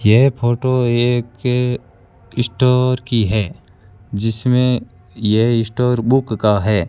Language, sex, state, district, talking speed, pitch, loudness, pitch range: Hindi, male, Rajasthan, Bikaner, 105 wpm, 115 Hz, -17 LUFS, 105-125 Hz